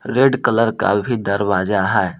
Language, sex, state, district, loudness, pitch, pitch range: Hindi, male, Jharkhand, Palamu, -17 LUFS, 110 Hz, 100-120 Hz